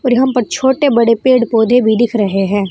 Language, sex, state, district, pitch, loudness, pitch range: Hindi, female, Uttar Pradesh, Saharanpur, 235 Hz, -12 LUFS, 220-255 Hz